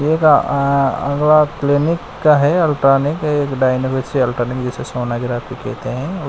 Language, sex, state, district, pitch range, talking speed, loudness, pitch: Hindi, male, Bihar, West Champaran, 130-150 Hz, 115 wpm, -16 LUFS, 140 Hz